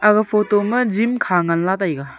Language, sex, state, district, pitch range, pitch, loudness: Wancho, female, Arunachal Pradesh, Longding, 180-215 Hz, 205 Hz, -18 LUFS